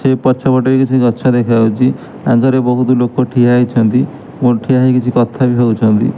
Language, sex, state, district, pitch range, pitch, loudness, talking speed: Odia, male, Odisha, Malkangiri, 120-130 Hz, 125 Hz, -12 LUFS, 175 wpm